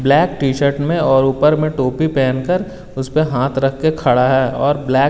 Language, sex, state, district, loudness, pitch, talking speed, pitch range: Hindi, male, Delhi, New Delhi, -16 LUFS, 140 Hz, 225 wpm, 135-155 Hz